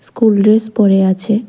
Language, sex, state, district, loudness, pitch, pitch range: Bengali, female, Tripura, West Tripura, -12 LUFS, 215 Hz, 195-220 Hz